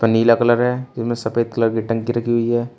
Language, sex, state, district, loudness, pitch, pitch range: Hindi, male, Uttar Pradesh, Shamli, -18 LUFS, 120 Hz, 115-120 Hz